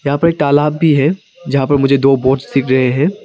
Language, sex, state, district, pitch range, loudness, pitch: Hindi, male, Arunachal Pradesh, Papum Pare, 135-155 Hz, -13 LUFS, 140 Hz